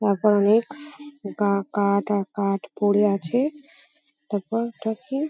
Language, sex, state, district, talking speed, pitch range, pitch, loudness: Bengali, female, West Bengal, Paschim Medinipur, 125 wpm, 200-280 Hz, 215 Hz, -23 LUFS